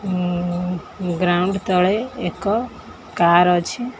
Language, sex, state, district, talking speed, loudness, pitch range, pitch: Odia, female, Odisha, Khordha, 90 wpm, -20 LUFS, 175-200 Hz, 180 Hz